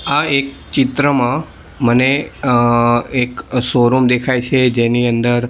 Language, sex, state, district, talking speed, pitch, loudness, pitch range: Gujarati, male, Gujarat, Gandhinagar, 120 wpm, 125 Hz, -15 LUFS, 120-135 Hz